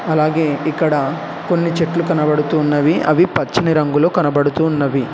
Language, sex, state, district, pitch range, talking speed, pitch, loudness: Telugu, male, Telangana, Hyderabad, 145-165 Hz, 105 wpm, 155 Hz, -16 LUFS